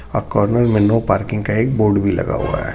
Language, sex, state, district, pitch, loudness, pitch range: Hindi, male, Jharkhand, Ranchi, 105 Hz, -17 LUFS, 100-115 Hz